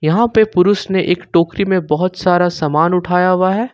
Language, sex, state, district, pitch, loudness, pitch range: Hindi, male, Jharkhand, Ranchi, 180 Hz, -14 LUFS, 175-190 Hz